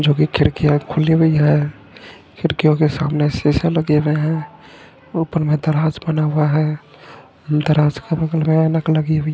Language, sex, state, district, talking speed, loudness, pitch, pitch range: Hindi, male, Punjab, Fazilka, 150 wpm, -17 LUFS, 155 Hz, 150-160 Hz